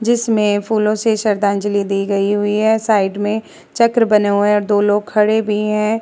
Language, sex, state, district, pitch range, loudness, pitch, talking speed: Hindi, female, Uttar Pradesh, Muzaffarnagar, 205-220 Hz, -16 LUFS, 210 Hz, 200 wpm